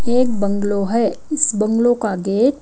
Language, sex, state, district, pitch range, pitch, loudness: Hindi, female, Himachal Pradesh, Shimla, 205-250 Hz, 225 Hz, -18 LUFS